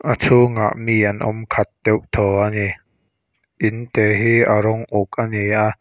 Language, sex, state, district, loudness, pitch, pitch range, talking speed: Mizo, male, Mizoram, Aizawl, -18 LUFS, 110 Hz, 105-115 Hz, 175 wpm